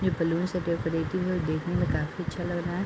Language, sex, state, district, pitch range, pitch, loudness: Hindi, female, Uttar Pradesh, Hamirpur, 165-180 Hz, 175 Hz, -29 LUFS